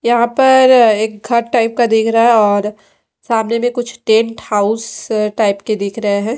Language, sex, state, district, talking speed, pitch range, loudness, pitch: Hindi, female, Odisha, Malkangiri, 190 wpm, 210-235 Hz, -13 LUFS, 225 Hz